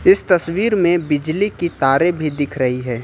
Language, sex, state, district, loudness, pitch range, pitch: Hindi, male, Jharkhand, Ranchi, -17 LUFS, 145-180 Hz, 165 Hz